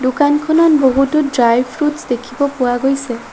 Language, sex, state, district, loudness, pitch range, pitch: Assamese, female, Assam, Sonitpur, -14 LUFS, 245-295 Hz, 270 Hz